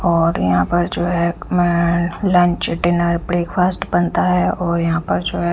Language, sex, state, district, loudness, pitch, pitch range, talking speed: Hindi, female, Haryana, Rohtak, -17 LUFS, 175 Hz, 170-175 Hz, 175 wpm